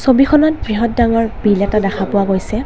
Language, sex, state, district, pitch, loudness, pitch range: Assamese, female, Assam, Kamrup Metropolitan, 220 Hz, -14 LUFS, 200-245 Hz